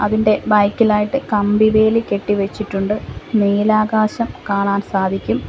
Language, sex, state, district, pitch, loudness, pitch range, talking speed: Malayalam, female, Kerala, Kollam, 210 Hz, -17 LUFS, 200-215 Hz, 110 wpm